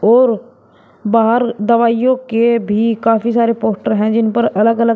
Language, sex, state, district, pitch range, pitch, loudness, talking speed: Hindi, male, Uttar Pradesh, Shamli, 225-235 Hz, 230 Hz, -14 LUFS, 155 wpm